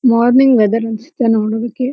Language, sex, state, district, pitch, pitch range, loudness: Kannada, female, Karnataka, Dharwad, 235 Hz, 225-255 Hz, -13 LUFS